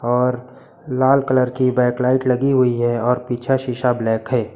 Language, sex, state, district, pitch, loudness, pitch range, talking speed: Hindi, male, Uttar Pradesh, Lucknow, 125 Hz, -18 LUFS, 120-130 Hz, 185 wpm